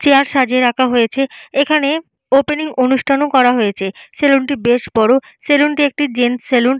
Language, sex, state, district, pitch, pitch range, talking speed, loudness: Bengali, female, Jharkhand, Jamtara, 270 Hz, 245-290 Hz, 150 wpm, -14 LUFS